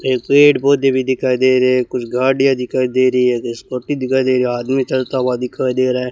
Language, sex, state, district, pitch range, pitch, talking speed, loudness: Hindi, male, Rajasthan, Bikaner, 125-130 Hz, 130 Hz, 255 wpm, -15 LUFS